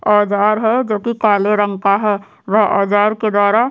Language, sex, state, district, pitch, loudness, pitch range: Hindi, male, Chhattisgarh, Sukma, 210 Hz, -15 LUFS, 205-215 Hz